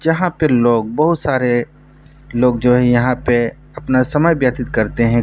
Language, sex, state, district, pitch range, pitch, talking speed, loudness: Hindi, male, Bihar, Purnia, 120-150 Hz, 125 Hz, 170 wpm, -15 LUFS